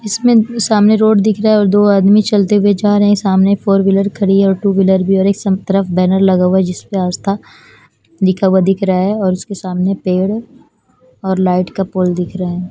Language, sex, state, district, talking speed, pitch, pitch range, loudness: Hindi, female, Chandigarh, Chandigarh, 210 wpm, 195 Hz, 190-205 Hz, -13 LUFS